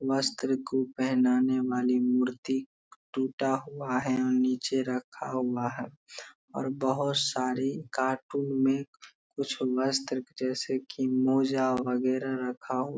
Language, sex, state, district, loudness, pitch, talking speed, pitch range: Hindi, male, Bihar, Darbhanga, -29 LUFS, 130 Hz, 125 wpm, 125-135 Hz